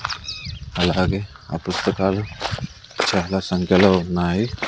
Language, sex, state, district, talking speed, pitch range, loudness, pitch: Telugu, male, Andhra Pradesh, Sri Satya Sai, 75 wpm, 90-95 Hz, -21 LUFS, 95 Hz